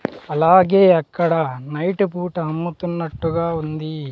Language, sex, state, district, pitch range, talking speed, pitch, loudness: Telugu, male, Andhra Pradesh, Sri Satya Sai, 155-180 Hz, 85 wpm, 165 Hz, -19 LUFS